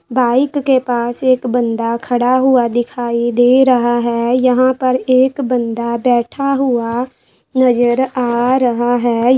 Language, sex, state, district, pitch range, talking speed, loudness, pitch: Hindi, female, Bihar, Araria, 240-255 Hz, 135 wpm, -14 LUFS, 245 Hz